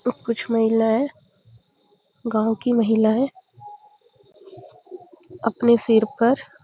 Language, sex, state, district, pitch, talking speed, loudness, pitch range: Hindi, female, Chhattisgarh, Bastar, 235 Hz, 90 wpm, -20 LUFS, 225-295 Hz